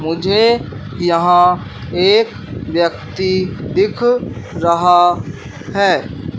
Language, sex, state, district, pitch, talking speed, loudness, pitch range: Hindi, male, Madhya Pradesh, Katni, 175 Hz, 65 wpm, -15 LUFS, 165-195 Hz